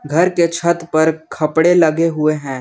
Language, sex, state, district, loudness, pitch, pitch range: Hindi, male, Jharkhand, Garhwa, -15 LUFS, 160 Hz, 155-170 Hz